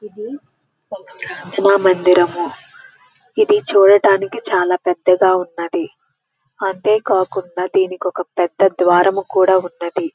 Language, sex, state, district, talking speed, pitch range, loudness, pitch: Telugu, female, Andhra Pradesh, Krishna, 90 wpm, 180-205 Hz, -15 LUFS, 190 Hz